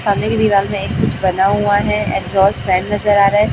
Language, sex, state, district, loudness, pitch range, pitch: Hindi, male, Chhattisgarh, Raipur, -15 LUFS, 195-205 Hz, 200 Hz